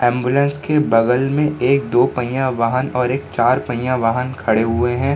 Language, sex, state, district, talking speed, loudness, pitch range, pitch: Hindi, male, Bihar, Samastipur, 185 wpm, -17 LUFS, 120-140 Hz, 125 Hz